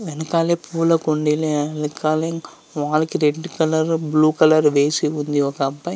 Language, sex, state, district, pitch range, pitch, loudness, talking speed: Telugu, male, Andhra Pradesh, Visakhapatnam, 150-165 Hz, 155 Hz, -19 LUFS, 130 wpm